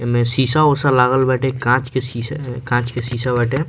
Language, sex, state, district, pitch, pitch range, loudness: Bhojpuri, male, Bihar, Muzaffarpur, 125 Hz, 120-135 Hz, -17 LUFS